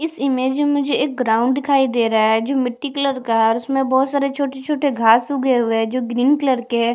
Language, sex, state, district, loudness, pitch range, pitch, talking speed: Hindi, female, Chhattisgarh, Jashpur, -18 LUFS, 235-280 Hz, 260 Hz, 270 wpm